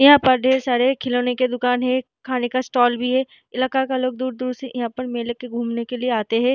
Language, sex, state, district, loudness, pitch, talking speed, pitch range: Hindi, female, Bihar, Vaishali, -21 LUFS, 250 Hz, 245 wpm, 245-255 Hz